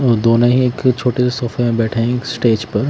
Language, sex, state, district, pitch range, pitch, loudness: Hindi, male, Himachal Pradesh, Shimla, 115-125 Hz, 120 Hz, -16 LUFS